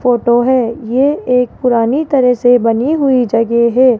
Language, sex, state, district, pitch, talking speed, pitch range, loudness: Hindi, female, Rajasthan, Jaipur, 245 Hz, 165 wpm, 235-260 Hz, -12 LUFS